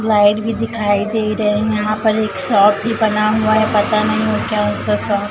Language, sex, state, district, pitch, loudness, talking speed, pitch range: Hindi, female, Chhattisgarh, Raipur, 215 Hz, -16 LUFS, 235 wpm, 205-220 Hz